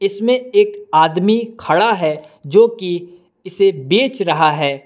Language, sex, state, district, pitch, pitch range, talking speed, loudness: Hindi, male, Jharkhand, Palamu, 190 Hz, 155-210 Hz, 135 wpm, -15 LUFS